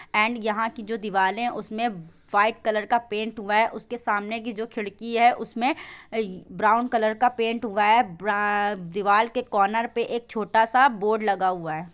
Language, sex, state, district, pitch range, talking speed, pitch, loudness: Hindi, female, Bihar, East Champaran, 205-235 Hz, 190 wpm, 220 Hz, -24 LUFS